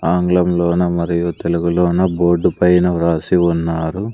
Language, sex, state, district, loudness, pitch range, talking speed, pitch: Telugu, male, Andhra Pradesh, Sri Satya Sai, -16 LUFS, 85-90 Hz, 100 wpm, 85 Hz